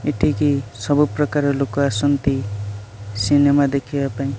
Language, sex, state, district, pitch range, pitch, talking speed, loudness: Odia, male, Odisha, Nuapada, 110-145 Hz, 140 Hz, 110 wpm, -19 LUFS